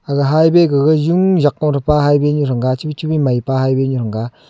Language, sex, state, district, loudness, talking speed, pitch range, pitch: Wancho, male, Arunachal Pradesh, Longding, -14 LUFS, 240 wpm, 130-155 Hz, 145 Hz